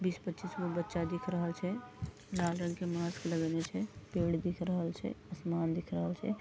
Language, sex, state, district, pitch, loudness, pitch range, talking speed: Maithili, female, Bihar, Vaishali, 175 Hz, -37 LUFS, 170-180 Hz, 185 wpm